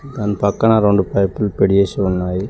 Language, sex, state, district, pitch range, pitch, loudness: Telugu, male, Telangana, Mahabubabad, 95-105 Hz, 100 Hz, -16 LUFS